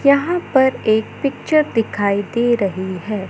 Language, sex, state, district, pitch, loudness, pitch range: Hindi, male, Madhya Pradesh, Katni, 225 Hz, -18 LUFS, 205-275 Hz